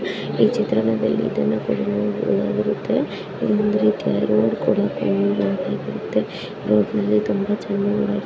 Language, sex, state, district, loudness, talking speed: Kannada, female, Karnataka, Bijapur, -21 LUFS, 130 wpm